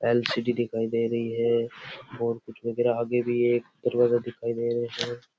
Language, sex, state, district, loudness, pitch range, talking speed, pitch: Rajasthani, male, Rajasthan, Churu, -27 LUFS, 115-120 Hz, 200 wpm, 120 Hz